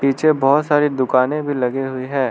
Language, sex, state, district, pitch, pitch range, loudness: Hindi, male, Arunachal Pradesh, Lower Dibang Valley, 135 Hz, 130-150 Hz, -17 LUFS